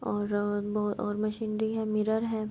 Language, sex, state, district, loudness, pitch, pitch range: Urdu, female, Andhra Pradesh, Anantapur, -30 LUFS, 215 Hz, 205-220 Hz